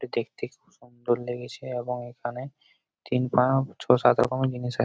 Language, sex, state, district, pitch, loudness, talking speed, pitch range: Bengali, male, West Bengal, Jhargram, 125 Hz, -26 LUFS, 150 wpm, 120-130 Hz